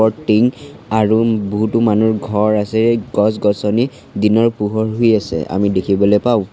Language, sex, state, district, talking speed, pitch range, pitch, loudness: Assamese, male, Assam, Sonitpur, 130 wpm, 105-115 Hz, 110 Hz, -15 LUFS